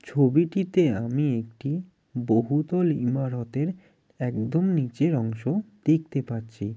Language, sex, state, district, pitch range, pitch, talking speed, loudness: Bengali, male, West Bengal, Jalpaiguri, 120-165 Hz, 145 Hz, 90 wpm, -26 LUFS